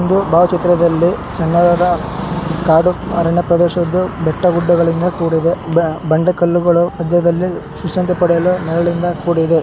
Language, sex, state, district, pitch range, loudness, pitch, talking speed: Kannada, male, Karnataka, Shimoga, 170-180 Hz, -14 LUFS, 175 Hz, 100 wpm